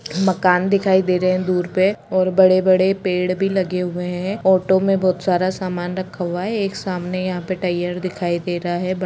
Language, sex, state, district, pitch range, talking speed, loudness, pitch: Hindi, female, Bihar, Gopalganj, 180-190 Hz, 220 wpm, -19 LUFS, 185 Hz